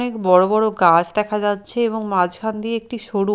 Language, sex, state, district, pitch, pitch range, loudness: Bengali, female, Chhattisgarh, Raipur, 210 Hz, 190-220 Hz, -18 LUFS